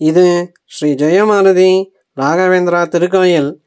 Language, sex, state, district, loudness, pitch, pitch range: Tamil, male, Tamil Nadu, Nilgiris, -12 LUFS, 175 Hz, 155-185 Hz